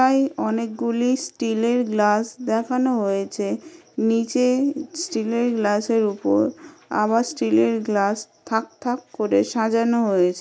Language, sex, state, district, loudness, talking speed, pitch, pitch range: Bengali, female, West Bengal, Paschim Medinipur, -22 LUFS, 125 wpm, 225 Hz, 210-245 Hz